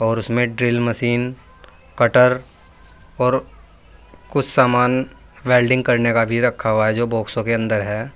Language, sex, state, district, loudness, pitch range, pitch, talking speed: Hindi, male, Uttar Pradesh, Saharanpur, -18 LUFS, 110-125 Hz, 115 Hz, 145 wpm